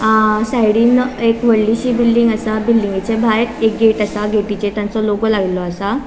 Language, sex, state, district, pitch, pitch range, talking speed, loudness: Konkani, female, Goa, North and South Goa, 220 Hz, 210-230 Hz, 160 wpm, -15 LUFS